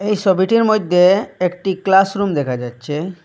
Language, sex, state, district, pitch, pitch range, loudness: Bengali, male, Assam, Hailakandi, 190 Hz, 175-200 Hz, -16 LUFS